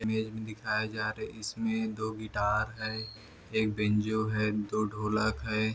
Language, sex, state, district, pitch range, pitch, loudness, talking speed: Hindi, male, Chhattisgarh, Kabirdham, 105-110 Hz, 110 Hz, -32 LUFS, 165 wpm